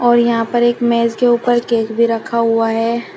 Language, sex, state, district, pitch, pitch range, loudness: Hindi, female, Uttar Pradesh, Shamli, 235 Hz, 230-240 Hz, -15 LUFS